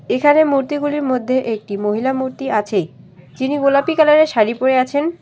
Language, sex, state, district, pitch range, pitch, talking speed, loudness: Bengali, female, West Bengal, Alipurduar, 225-290 Hz, 265 Hz, 150 wpm, -16 LUFS